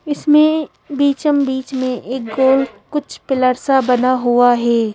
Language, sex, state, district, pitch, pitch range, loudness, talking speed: Hindi, female, Madhya Pradesh, Bhopal, 265 Hz, 250-285 Hz, -16 LUFS, 145 wpm